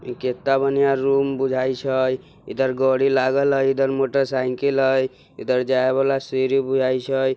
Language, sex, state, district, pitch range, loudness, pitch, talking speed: Bajjika, male, Bihar, Vaishali, 130-135 Hz, -20 LUFS, 135 Hz, 155 wpm